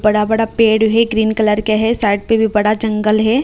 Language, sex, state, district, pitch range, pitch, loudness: Hindi, female, Odisha, Malkangiri, 210-225 Hz, 220 Hz, -14 LUFS